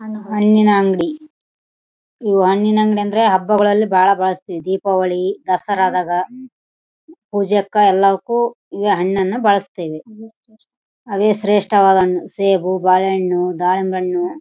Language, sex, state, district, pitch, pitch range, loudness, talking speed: Kannada, female, Karnataka, Raichur, 200 Hz, 185-215 Hz, -16 LUFS, 70 wpm